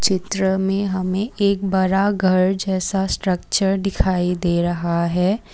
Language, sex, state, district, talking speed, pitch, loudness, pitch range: Hindi, female, Assam, Kamrup Metropolitan, 130 wpm, 190 Hz, -20 LUFS, 185-195 Hz